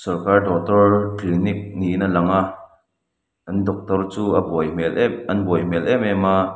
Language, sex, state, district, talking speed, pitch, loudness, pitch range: Mizo, male, Mizoram, Aizawl, 175 wpm, 95 Hz, -19 LUFS, 85-100 Hz